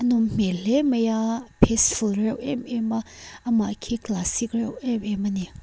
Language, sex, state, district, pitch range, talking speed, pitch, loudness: Mizo, female, Mizoram, Aizawl, 210-235 Hz, 180 wpm, 225 Hz, -24 LUFS